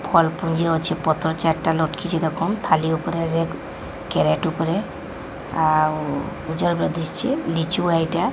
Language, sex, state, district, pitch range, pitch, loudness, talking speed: Odia, female, Odisha, Sambalpur, 155-165 Hz, 160 Hz, -22 LUFS, 130 wpm